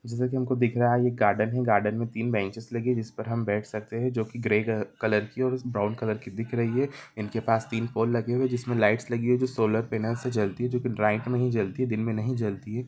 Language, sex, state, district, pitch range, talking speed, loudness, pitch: Hindi, male, Chhattisgarh, Bilaspur, 110-125 Hz, 270 wpm, -27 LUFS, 115 Hz